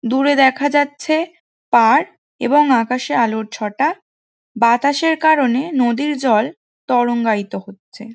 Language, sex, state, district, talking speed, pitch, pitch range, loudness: Bengali, female, West Bengal, Jhargram, 105 wpm, 255 Hz, 235-290 Hz, -16 LUFS